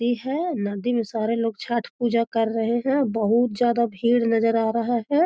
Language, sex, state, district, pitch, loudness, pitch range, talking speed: Magahi, female, Bihar, Gaya, 235 Hz, -23 LUFS, 225-240 Hz, 205 wpm